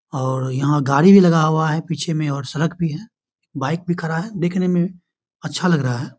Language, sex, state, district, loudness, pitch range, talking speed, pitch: Hindi, male, Bihar, Begusarai, -18 LUFS, 145-175 Hz, 225 wpm, 160 Hz